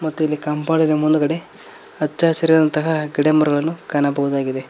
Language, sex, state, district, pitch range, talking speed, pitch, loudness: Kannada, male, Karnataka, Koppal, 145-160 Hz, 100 wpm, 155 Hz, -18 LUFS